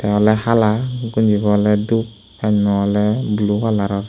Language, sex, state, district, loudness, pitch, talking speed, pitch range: Chakma, male, Tripura, Unakoti, -17 LUFS, 105 Hz, 145 wpm, 105-110 Hz